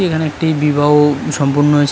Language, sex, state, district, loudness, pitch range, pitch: Bengali, male, West Bengal, Kolkata, -14 LUFS, 145-155 Hz, 150 Hz